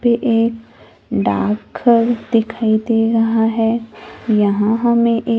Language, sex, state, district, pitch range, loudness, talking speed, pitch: Hindi, female, Maharashtra, Gondia, 225-235 Hz, -16 LUFS, 110 wpm, 225 Hz